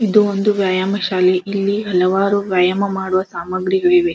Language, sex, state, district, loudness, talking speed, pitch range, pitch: Kannada, female, Karnataka, Dharwad, -17 LUFS, 145 wpm, 185-200 Hz, 190 Hz